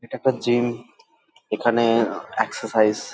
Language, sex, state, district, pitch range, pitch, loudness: Bengali, male, West Bengal, Dakshin Dinajpur, 115-130 Hz, 120 Hz, -22 LUFS